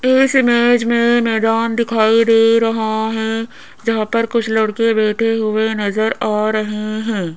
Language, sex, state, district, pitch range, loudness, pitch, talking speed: Hindi, female, Rajasthan, Jaipur, 220-230 Hz, -15 LUFS, 225 Hz, 145 wpm